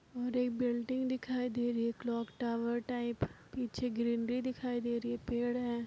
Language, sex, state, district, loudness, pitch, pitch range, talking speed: Hindi, female, Uttar Pradesh, Etah, -36 LUFS, 240 Hz, 235-250 Hz, 175 wpm